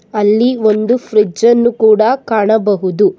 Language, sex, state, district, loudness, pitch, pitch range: Kannada, female, Karnataka, Bangalore, -12 LUFS, 220 Hz, 210-235 Hz